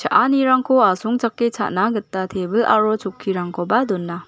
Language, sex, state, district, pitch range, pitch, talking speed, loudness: Garo, female, Meghalaya, West Garo Hills, 185-240 Hz, 215 Hz, 100 wpm, -19 LUFS